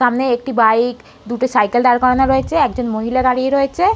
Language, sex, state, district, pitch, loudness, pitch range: Bengali, female, West Bengal, Malda, 250 Hz, -15 LUFS, 240-265 Hz